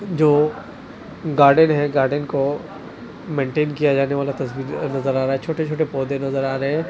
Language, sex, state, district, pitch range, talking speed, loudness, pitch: Hindi, male, Delhi, New Delhi, 135-155 Hz, 175 wpm, -20 LUFS, 145 Hz